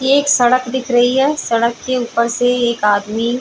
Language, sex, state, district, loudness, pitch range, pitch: Hindi, female, Bihar, Saran, -15 LUFS, 235-260 Hz, 245 Hz